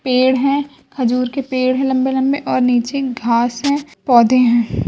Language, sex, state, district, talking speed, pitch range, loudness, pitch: Hindi, female, Uttar Pradesh, Budaun, 160 wpm, 245-275 Hz, -16 LUFS, 255 Hz